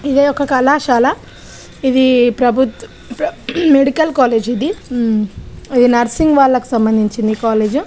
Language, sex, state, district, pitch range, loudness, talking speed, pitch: Telugu, female, Telangana, Nalgonda, 240-280 Hz, -14 LUFS, 120 wpm, 255 Hz